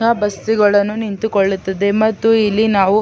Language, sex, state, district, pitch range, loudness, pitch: Kannada, female, Karnataka, Chamarajanagar, 200-220 Hz, -15 LUFS, 210 Hz